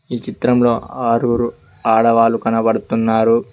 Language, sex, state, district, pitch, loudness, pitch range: Telugu, male, Telangana, Mahabubabad, 115 Hz, -16 LUFS, 115-120 Hz